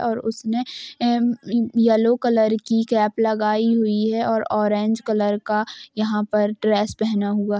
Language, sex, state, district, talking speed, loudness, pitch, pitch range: Hindi, female, Bihar, Gopalganj, 160 wpm, -21 LUFS, 220 Hz, 210-230 Hz